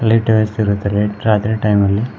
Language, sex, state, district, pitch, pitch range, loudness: Kannada, male, Karnataka, Koppal, 105 Hz, 105-110 Hz, -15 LUFS